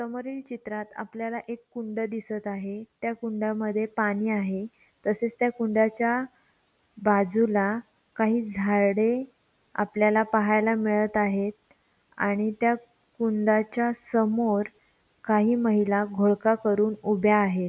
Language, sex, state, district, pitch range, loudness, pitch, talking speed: Marathi, female, Maharashtra, Pune, 210-230 Hz, -26 LUFS, 215 Hz, 105 wpm